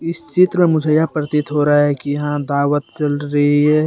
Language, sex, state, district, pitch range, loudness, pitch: Hindi, male, Jharkhand, Deoghar, 145-155 Hz, -16 LUFS, 145 Hz